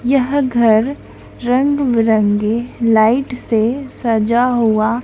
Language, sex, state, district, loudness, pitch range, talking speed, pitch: Hindi, female, Madhya Pradesh, Dhar, -15 LUFS, 220-255 Hz, 95 wpm, 235 Hz